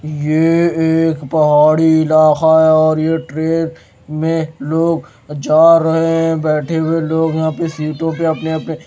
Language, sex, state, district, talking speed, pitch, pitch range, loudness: Hindi, male, Maharashtra, Mumbai Suburban, 155 wpm, 160 Hz, 155-165 Hz, -14 LUFS